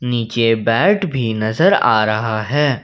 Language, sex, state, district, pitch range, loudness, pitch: Hindi, male, Jharkhand, Ranchi, 110-145 Hz, -16 LUFS, 115 Hz